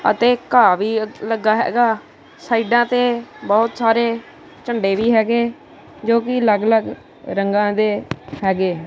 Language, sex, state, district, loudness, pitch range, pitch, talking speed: Punjabi, male, Punjab, Kapurthala, -18 LUFS, 210-235 Hz, 225 Hz, 130 wpm